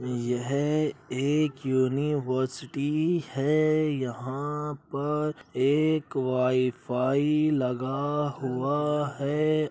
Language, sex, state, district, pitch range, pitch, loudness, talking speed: Hindi, male, Uttar Pradesh, Jyotiba Phule Nagar, 130-150 Hz, 140 Hz, -27 LUFS, 70 wpm